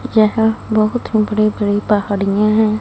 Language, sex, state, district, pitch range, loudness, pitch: Hindi, female, Punjab, Fazilka, 210-220 Hz, -16 LUFS, 215 Hz